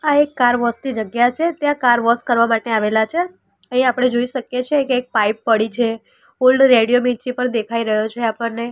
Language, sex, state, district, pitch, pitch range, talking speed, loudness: Gujarati, female, Gujarat, Gandhinagar, 240 Hz, 230-255 Hz, 220 wpm, -17 LUFS